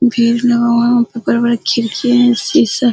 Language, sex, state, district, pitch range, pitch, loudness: Hindi, female, Bihar, Araria, 235-245 Hz, 235 Hz, -13 LUFS